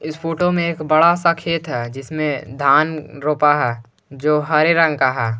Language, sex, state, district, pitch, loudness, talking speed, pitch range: Hindi, male, Jharkhand, Garhwa, 150 Hz, -17 LUFS, 190 wpm, 135-165 Hz